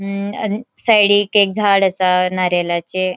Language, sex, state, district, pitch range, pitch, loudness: Konkani, female, Goa, North and South Goa, 185-205 Hz, 195 Hz, -15 LUFS